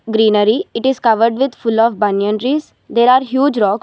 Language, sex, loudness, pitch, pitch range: English, female, -14 LUFS, 230 Hz, 215-260 Hz